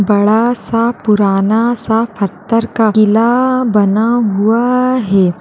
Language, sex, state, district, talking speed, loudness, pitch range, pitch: Hindi, female, Uttar Pradesh, Jalaun, 110 wpm, -12 LUFS, 205-235 Hz, 220 Hz